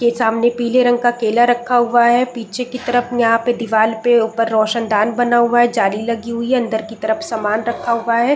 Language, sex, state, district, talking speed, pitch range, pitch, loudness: Hindi, female, Chhattisgarh, Raigarh, 245 wpm, 225-240 Hz, 235 Hz, -16 LUFS